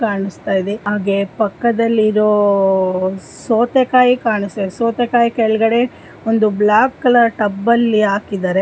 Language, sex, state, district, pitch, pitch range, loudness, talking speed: Kannada, female, Karnataka, Dharwad, 215 Hz, 200-235 Hz, -15 LUFS, 110 wpm